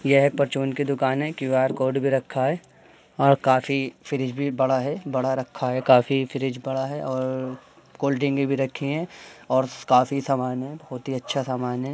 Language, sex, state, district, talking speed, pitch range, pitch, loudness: Hindi, male, Uttar Pradesh, Muzaffarnagar, 185 wpm, 130-140 Hz, 135 Hz, -24 LUFS